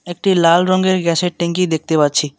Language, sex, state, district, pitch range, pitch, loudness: Bengali, male, West Bengal, Alipurduar, 160-180 Hz, 170 Hz, -15 LUFS